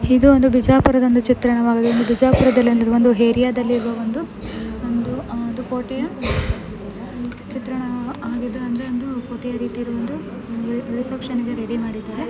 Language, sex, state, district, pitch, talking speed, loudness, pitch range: Kannada, female, Karnataka, Bijapur, 245 Hz, 125 wpm, -19 LUFS, 235-250 Hz